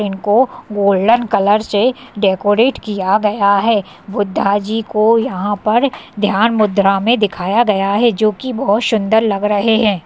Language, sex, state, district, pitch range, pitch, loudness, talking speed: Hindi, female, Uttar Pradesh, Hamirpur, 200-225 Hz, 210 Hz, -14 LUFS, 150 wpm